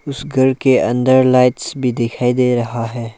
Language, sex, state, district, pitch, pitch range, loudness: Hindi, male, Arunachal Pradesh, Lower Dibang Valley, 125 Hz, 120-130 Hz, -15 LUFS